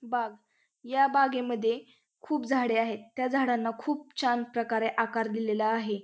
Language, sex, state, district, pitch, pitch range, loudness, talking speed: Marathi, female, Maharashtra, Pune, 235 Hz, 225-260 Hz, -29 LUFS, 140 wpm